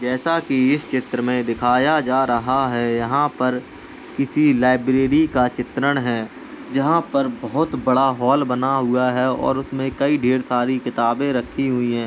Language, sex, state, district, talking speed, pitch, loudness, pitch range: Hindi, male, Uttar Pradesh, Jalaun, 165 wpm, 130 Hz, -19 LUFS, 125-140 Hz